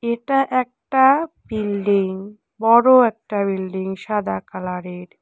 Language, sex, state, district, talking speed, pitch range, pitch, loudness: Bengali, female, West Bengal, Cooch Behar, 90 wpm, 190-250 Hz, 210 Hz, -19 LUFS